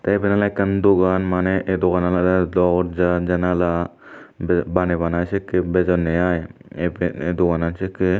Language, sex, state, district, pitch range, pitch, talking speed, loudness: Chakma, male, Tripura, Dhalai, 90-95 Hz, 90 Hz, 145 wpm, -20 LUFS